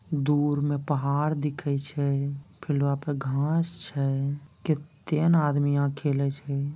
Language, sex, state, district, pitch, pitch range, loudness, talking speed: Angika, female, Bihar, Begusarai, 145 Hz, 140-150 Hz, -27 LUFS, 140 wpm